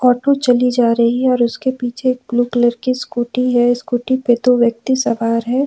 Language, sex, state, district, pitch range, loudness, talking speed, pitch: Hindi, female, Jharkhand, Ranchi, 240-255 Hz, -16 LUFS, 210 wpm, 245 Hz